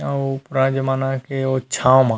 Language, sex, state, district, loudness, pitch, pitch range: Chhattisgarhi, male, Chhattisgarh, Rajnandgaon, -20 LUFS, 135 Hz, 130-135 Hz